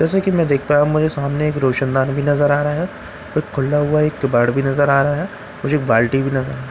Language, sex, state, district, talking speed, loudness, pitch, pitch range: Hindi, male, Bihar, Katihar, 270 wpm, -17 LUFS, 145 Hz, 135-150 Hz